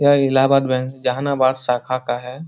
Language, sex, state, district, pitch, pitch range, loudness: Hindi, male, Bihar, Jahanabad, 130 Hz, 125-140 Hz, -18 LUFS